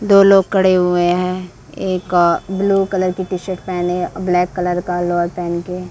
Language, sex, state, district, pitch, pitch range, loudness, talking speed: Hindi, female, Bihar, Saran, 180 Hz, 175-190 Hz, -16 LUFS, 185 wpm